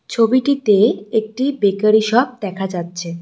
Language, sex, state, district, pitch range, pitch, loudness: Bengali, female, West Bengal, Cooch Behar, 195-245 Hz, 215 Hz, -17 LUFS